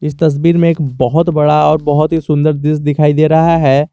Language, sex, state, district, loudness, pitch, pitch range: Hindi, male, Jharkhand, Garhwa, -12 LUFS, 150 Hz, 150-160 Hz